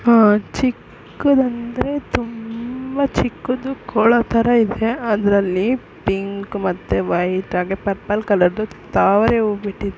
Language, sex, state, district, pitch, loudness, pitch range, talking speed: Kannada, female, Karnataka, Shimoga, 220 Hz, -19 LUFS, 200-240 Hz, 110 wpm